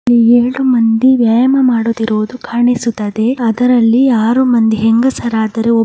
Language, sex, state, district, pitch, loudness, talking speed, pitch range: Kannada, male, Karnataka, Mysore, 235 Hz, -12 LUFS, 125 wpm, 225-245 Hz